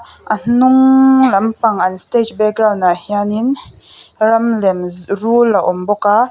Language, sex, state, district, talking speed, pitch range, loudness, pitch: Mizo, female, Mizoram, Aizawl, 135 wpm, 200-235 Hz, -13 LUFS, 215 Hz